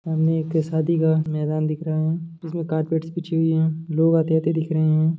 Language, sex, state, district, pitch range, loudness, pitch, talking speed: Hindi, male, Jharkhand, Sahebganj, 155-165 Hz, -22 LUFS, 160 Hz, 220 wpm